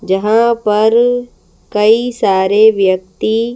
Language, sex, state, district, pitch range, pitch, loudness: Hindi, female, Madhya Pradesh, Bhopal, 195-235 Hz, 215 Hz, -12 LUFS